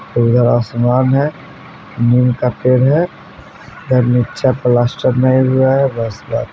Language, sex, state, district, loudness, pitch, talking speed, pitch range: Bajjika, male, Bihar, Vaishali, -14 LUFS, 125 Hz, 130 wpm, 120-130 Hz